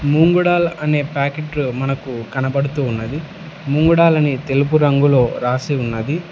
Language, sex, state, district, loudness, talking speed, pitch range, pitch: Telugu, male, Telangana, Hyderabad, -17 LUFS, 115 wpm, 135-155 Hz, 145 Hz